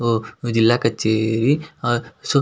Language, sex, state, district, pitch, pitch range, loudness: Kannada, male, Karnataka, Shimoga, 115 Hz, 110-140 Hz, -20 LUFS